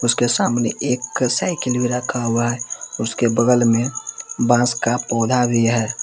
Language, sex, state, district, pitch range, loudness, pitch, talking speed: Hindi, male, Jharkhand, Palamu, 115-125 Hz, -19 LUFS, 120 Hz, 160 wpm